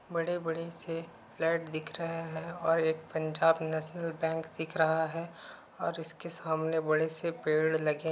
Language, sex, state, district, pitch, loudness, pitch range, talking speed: Hindi, male, Uttar Pradesh, Varanasi, 160 Hz, -32 LUFS, 160-165 Hz, 160 wpm